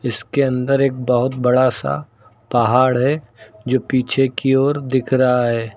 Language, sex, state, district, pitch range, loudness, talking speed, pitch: Hindi, male, Uttar Pradesh, Lucknow, 120-135 Hz, -17 LUFS, 155 wpm, 130 Hz